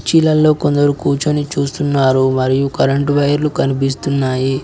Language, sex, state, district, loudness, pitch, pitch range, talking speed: Telugu, male, Telangana, Mahabubabad, -15 LUFS, 140 Hz, 135-145 Hz, 105 wpm